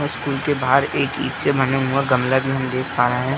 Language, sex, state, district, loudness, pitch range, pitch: Hindi, male, Uttar Pradesh, Etah, -20 LUFS, 130-140 Hz, 135 Hz